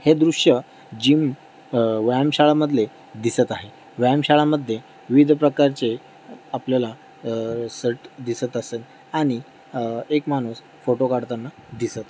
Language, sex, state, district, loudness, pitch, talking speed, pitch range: Marathi, male, Maharashtra, Dhule, -21 LUFS, 125 Hz, 130 wpm, 115-150 Hz